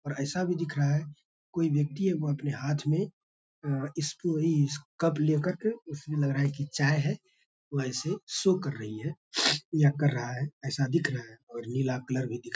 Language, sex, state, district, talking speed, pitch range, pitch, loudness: Hindi, male, Bihar, Bhagalpur, 200 wpm, 140-165 Hz, 145 Hz, -30 LUFS